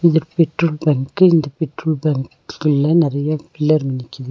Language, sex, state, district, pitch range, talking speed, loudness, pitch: Tamil, female, Tamil Nadu, Nilgiris, 140-160 Hz, 125 wpm, -17 LUFS, 155 Hz